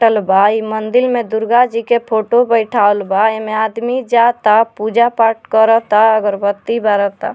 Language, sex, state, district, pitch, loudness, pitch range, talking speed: Bhojpuri, female, Bihar, Muzaffarpur, 220 Hz, -13 LUFS, 215-235 Hz, 145 wpm